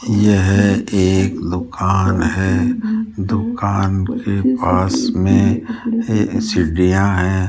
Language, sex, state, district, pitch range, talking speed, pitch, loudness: Hindi, male, Rajasthan, Jaipur, 90-110 Hz, 90 wpm, 95 Hz, -16 LUFS